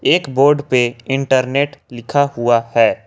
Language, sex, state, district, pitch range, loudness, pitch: Hindi, male, Jharkhand, Ranchi, 120-140 Hz, -16 LUFS, 130 Hz